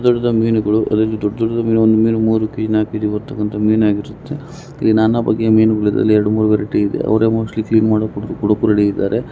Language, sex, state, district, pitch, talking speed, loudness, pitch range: Kannada, male, Karnataka, Dakshina Kannada, 110 Hz, 195 wpm, -15 LUFS, 105-115 Hz